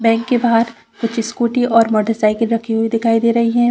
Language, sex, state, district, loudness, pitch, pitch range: Hindi, female, Chhattisgarh, Bilaspur, -16 LUFS, 230 Hz, 225-235 Hz